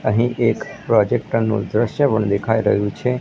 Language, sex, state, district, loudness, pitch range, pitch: Gujarati, male, Gujarat, Gandhinagar, -19 LUFS, 105-120 Hz, 110 Hz